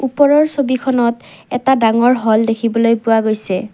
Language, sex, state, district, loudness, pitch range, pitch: Assamese, female, Assam, Kamrup Metropolitan, -14 LUFS, 225-260 Hz, 235 Hz